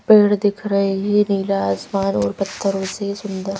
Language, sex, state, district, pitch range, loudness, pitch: Hindi, female, Madhya Pradesh, Bhopal, 195-205 Hz, -19 LUFS, 195 Hz